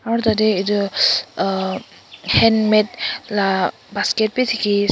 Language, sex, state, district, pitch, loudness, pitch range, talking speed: Nagamese, male, Nagaland, Kohima, 215 Hz, -18 LUFS, 200-220 Hz, 120 wpm